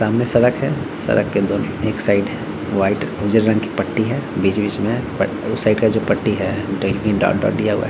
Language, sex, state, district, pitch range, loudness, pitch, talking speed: Hindi, male, Bihar, Vaishali, 100-110 Hz, -18 LUFS, 105 Hz, 220 wpm